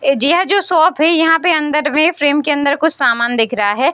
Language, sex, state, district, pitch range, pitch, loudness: Hindi, female, Bihar, East Champaran, 275-325 Hz, 295 Hz, -13 LUFS